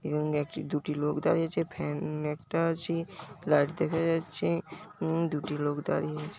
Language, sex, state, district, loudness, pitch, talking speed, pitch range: Bengali, male, West Bengal, Paschim Medinipur, -31 LUFS, 150 Hz, 160 wpm, 145-165 Hz